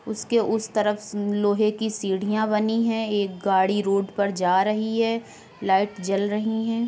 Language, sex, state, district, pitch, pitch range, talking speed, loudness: Hindi, female, Uttar Pradesh, Etah, 210 Hz, 200-220 Hz, 175 wpm, -23 LUFS